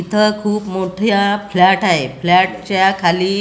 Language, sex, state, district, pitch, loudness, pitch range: Marathi, female, Maharashtra, Gondia, 190 Hz, -15 LUFS, 180-205 Hz